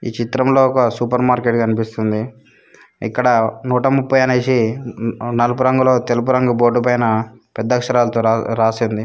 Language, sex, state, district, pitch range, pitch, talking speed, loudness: Telugu, female, Telangana, Mahabubabad, 115-125 Hz, 120 Hz, 125 wpm, -16 LUFS